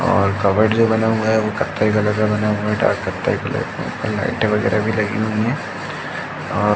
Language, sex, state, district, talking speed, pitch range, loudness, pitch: Hindi, male, Uttar Pradesh, Jalaun, 215 wpm, 105-110 Hz, -19 LUFS, 105 Hz